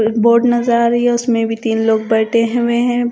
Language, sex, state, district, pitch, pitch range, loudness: Hindi, female, Punjab, Kapurthala, 235 Hz, 225-240 Hz, -14 LUFS